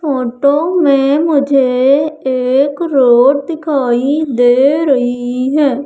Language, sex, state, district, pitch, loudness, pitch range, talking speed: Hindi, female, Madhya Pradesh, Umaria, 275 Hz, -12 LUFS, 255-295 Hz, 90 wpm